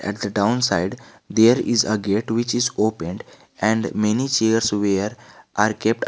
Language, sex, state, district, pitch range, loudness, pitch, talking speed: English, male, Jharkhand, Garhwa, 100-120 Hz, -20 LUFS, 110 Hz, 165 wpm